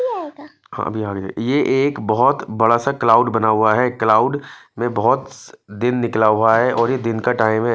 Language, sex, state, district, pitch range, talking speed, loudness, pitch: Hindi, male, Punjab, Fazilka, 110-125 Hz, 195 wpm, -17 LUFS, 115 Hz